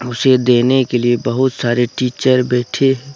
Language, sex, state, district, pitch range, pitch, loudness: Hindi, male, Jharkhand, Deoghar, 120-130 Hz, 125 Hz, -15 LUFS